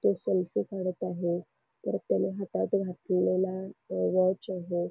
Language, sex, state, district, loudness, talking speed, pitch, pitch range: Marathi, female, Karnataka, Belgaum, -30 LUFS, 110 wpm, 185 Hz, 175-190 Hz